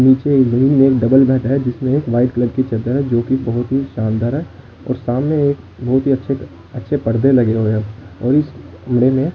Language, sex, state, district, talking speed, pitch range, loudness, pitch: Hindi, male, Chandigarh, Chandigarh, 220 wpm, 120-135 Hz, -16 LUFS, 130 Hz